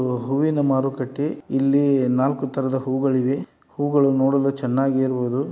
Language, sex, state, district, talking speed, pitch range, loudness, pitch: Kannada, male, Karnataka, Dharwad, 110 wpm, 130-140 Hz, -21 LUFS, 135 Hz